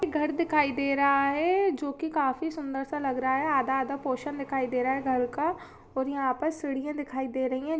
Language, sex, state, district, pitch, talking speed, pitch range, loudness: Hindi, female, Chhattisgarh, Rajnandgaon, 280 Hz, 215 wpm, 265-305 Hz, -28 LUFS